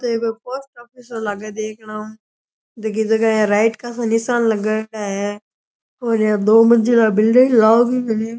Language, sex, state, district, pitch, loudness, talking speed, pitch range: Rajasthani, male, Rajasthan, Churu, 225 Hz, -17 LUFS, 155 wpm, 215-235 Hz